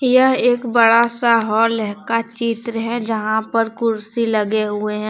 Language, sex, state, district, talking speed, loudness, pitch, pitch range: Hindi, female, Jharkhand, Deoghar, 175 wpm, -17 LUFS, 230 Hz, 220-235 Hz